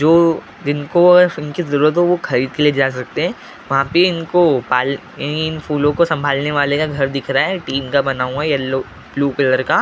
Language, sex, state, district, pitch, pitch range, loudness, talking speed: Hindi, male, Maharashtra, Gondia, 145 Hz, 135-165 Hz, -16 LUFS, 215 wpm